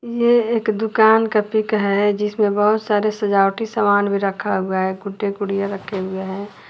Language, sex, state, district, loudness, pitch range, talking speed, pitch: Hindi, female, Uttar Pradesh, Lucknow, -19 LUFS, 200-220 Hz, 180 wpm, 205 Hz